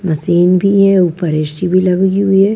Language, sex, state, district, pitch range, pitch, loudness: Hindi, female, Bihar, Patna, 175-195 Hz, 185 Hz, -12 LUFS